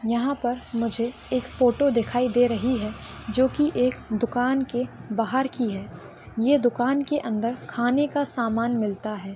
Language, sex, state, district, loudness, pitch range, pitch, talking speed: Hindi, female, Maharashtra, Pune, -24 LUFS, 230-260 Hz, 245 Hz, 165 wpm